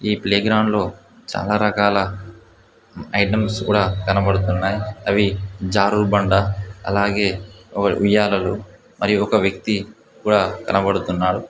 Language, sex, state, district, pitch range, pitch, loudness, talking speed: Telugu, male, Telangana, Mahabubabad, 95-105 Hz, 100 Hz, -19 LUFS, 95 wpm